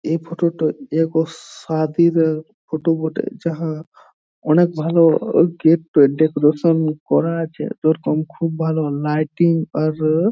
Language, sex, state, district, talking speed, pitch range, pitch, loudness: Bengali, male, West Bengal, Jhargram, 130 wpm, 155-165 Hz, 160 Hz, -18 LUFS